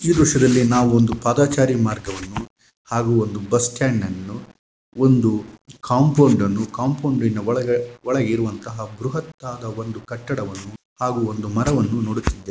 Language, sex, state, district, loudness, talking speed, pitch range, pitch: Kannada, male, Karnataka, Shimoga, -20 LUFS, 95 wpm, 110-130 Hz, 120 Hz